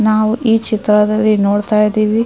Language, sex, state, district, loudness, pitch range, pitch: Kannada, female, Karnataka, Mysore, -13 LUFS, 210-220 Hz, 215 Hz